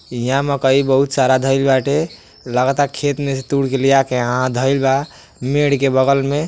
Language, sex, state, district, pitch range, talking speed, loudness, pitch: Bhojpuri, male, Uttar Pradesh, Deoria, 130-140 Hz, 205 wpm, -16 LUFS, 135 Hz